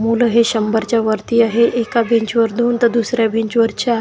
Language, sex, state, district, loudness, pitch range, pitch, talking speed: Marathi, male, Maharashtra, Washim, -15 LUFS, 225-235 Hz, 230 Hz, 195 wpm